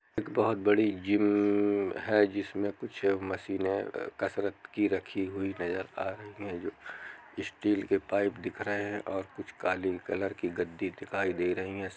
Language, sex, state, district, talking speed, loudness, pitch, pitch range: Hindi, male, Jharkhand, Jamtara, 155 wpm, -32 LUFS, 100 Hz, 95-105 Hz